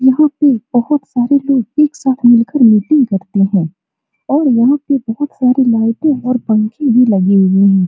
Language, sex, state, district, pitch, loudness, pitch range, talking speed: Hindi, female, Bihar, Supaul, 250 Hz, -12 LUFS, 215-280 Hz, 175 wpm